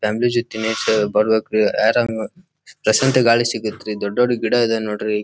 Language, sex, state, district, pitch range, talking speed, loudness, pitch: Kannada, male, Karnataka, Dharwad, 105-120 Hz, 185 wpm, -18 LUFS, 110 Hz